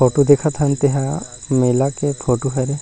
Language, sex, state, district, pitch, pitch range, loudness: Chhattisgarhi, male, Chhattisgarh, Rajnandgaon, 135 Hz, 130-145 Hz, -18 LUFS